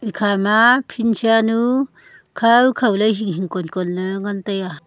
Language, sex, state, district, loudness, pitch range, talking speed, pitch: Wancho, female, Arunachal Pradesh, Longding, -17 LUFS, 190-230 Hz, 185 wpm, 210 Hz